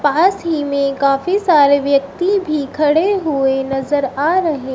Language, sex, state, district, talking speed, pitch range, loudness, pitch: Hindi, female, Uttar Pradesh, Shamli, 150 wpm, 275-335 Hz, -15 LUFS, 290 Hz